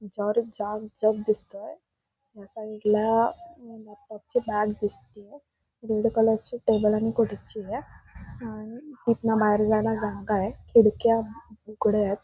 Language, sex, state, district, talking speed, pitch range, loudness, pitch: Marathi, female, Maharashtra, Dhule, 115 wpm, 210-230 Hz, -25 LUFS, 220 Hz